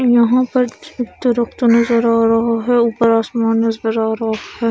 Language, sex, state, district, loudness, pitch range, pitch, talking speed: Hindi, female, Odisha, Khordha, -16 LUFS, 225-240 Hz, 230 Hz, 155 wpm